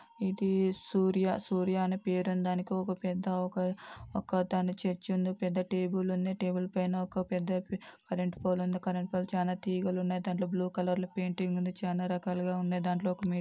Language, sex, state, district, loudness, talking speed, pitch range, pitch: Telugu, female, Andhra Pradesh, Anantapur, -33 LUFS, 160 wpm, 180-185 Hz, 185 Hz